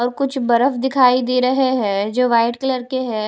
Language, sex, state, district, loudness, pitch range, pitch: Hindi, female, Himachal Pradesh, Shimla, -17 LUFS, 235-260 Hz, 250 Hz